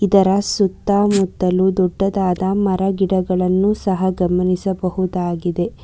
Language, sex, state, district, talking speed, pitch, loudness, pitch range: Kannada, female, Karnataka, Bangalore, 80 wpm, 190 Hz, -18 LUFS, 185-195 Hz